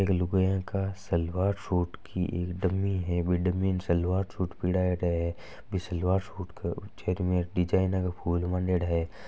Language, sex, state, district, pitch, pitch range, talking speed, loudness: Marwari, male, Rajasthan, Nagaur, 90 Hz, 90-95 Hz, 170 wpm, -29 LUFS